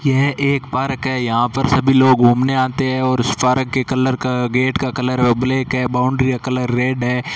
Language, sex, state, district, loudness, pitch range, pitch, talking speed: Hindi, male, Rajasthan, Bikaner, -17 LUFS, 125-130 Hz, 130 Hz, 220 wpm